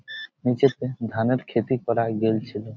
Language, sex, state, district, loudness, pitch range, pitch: Bengali, male, West Bengal, Jhargram, -24 LUFS, 110-130 Hz, 120 Hz